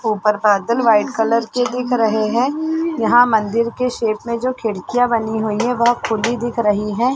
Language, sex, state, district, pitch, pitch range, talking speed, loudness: Hindi, female, Chhattisgarh, Bilaspur, 235 Hz, 220-245 Hz, 195 wpm, -17 LUFS